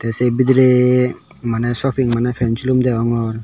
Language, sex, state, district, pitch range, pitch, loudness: Chakma, male, Tripura, Dhalai, 115-130 Hz, 125 Hz, -16 LUFS